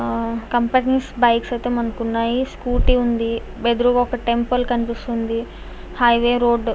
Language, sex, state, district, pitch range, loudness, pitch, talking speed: Telugu, female, Andhra Pradesh, Visakhapatnam, 230-245 Hz, -19 LUFS, 235 Hz, 135 wpm